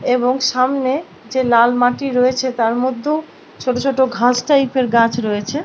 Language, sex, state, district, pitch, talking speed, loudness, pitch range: Bengali, female, West Bengal, Paschim Medinipur, 255 Hz, 160 wpm, -16 LUFS, 245-265 Hz